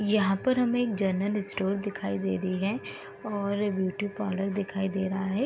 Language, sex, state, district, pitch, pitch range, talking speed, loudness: Hindi, female, Uttar Pradesh, Deoria, 195 Hz, 190-205 Hz, 185 wpm, -29 LUFS